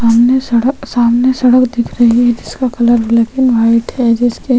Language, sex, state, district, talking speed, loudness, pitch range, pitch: Hindi, female, Chhattisgarh, Sukma, 185 wpm, -12 LUFS, 235-255 Hz, 240 Hz